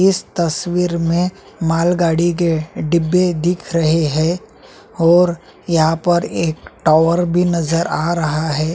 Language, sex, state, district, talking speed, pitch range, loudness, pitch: Hindi, male, Chhattisgarh, Sukma, 135 wpm, 165-175 Hz, -16 LUFS, 170 Hz